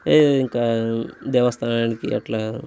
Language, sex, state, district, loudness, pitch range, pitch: Telugu, male, Andhra Pradesh, Guntur, -21 LUFS, 115-125 Hz, 115 Hz